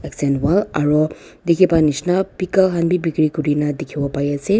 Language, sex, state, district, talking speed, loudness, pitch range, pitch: Nagamese, female, Nagaland, Dimapur, 170 wpm, -18 LUFS, 145-180 Hz, 155 Hz